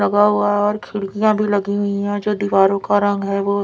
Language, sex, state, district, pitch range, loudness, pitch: Hindi, female, Punjab, Fazilka, 200-205 Hz, -18 LUFS, 205 Hz